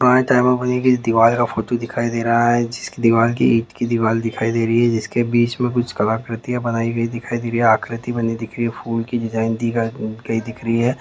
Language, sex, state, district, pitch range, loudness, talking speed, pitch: Hindi, male, Uttar Pradesh, Hamirpur, 115-120 Hz, -19 LUFS, 210 wpm, 115 Hz